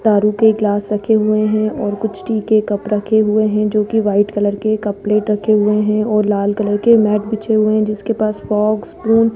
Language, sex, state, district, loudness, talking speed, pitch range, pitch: Hindi, female, Rajasthan, Jaipur, -15 LUFS, 230 wpm, 210-215 Hz, 215 Hz